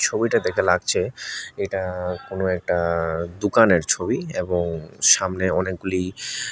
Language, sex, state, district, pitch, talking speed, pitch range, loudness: Bengali, male, Tripura, West Tripura, 90 Hz, 110 wpm, 85-95 Hz, -22 LUFS